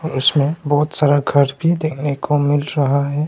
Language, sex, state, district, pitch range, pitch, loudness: Hindi, male, Arunachal Pradesh, Longding, 140-150 Hz, 145 Hz, -17 LUFS